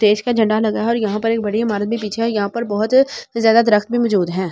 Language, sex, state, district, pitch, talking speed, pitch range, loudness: Hindi, female, Delhi, New Delhi, 220 Hz, 265 wpm, 210-230 Hz, -17 LUFS